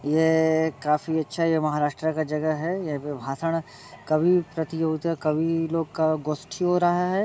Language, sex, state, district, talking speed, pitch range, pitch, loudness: Hindi, male, Bihar, Muzaffarpur, 175 wpm, 155-165 Hz, 160 Hz, -25 LUFS